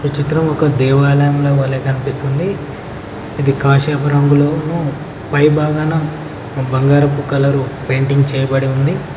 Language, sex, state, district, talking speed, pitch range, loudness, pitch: Telugu, male, Telangana, Mahabubabad, 110 wpm, 135-150 Hz, -15 LUFS, 140 Hz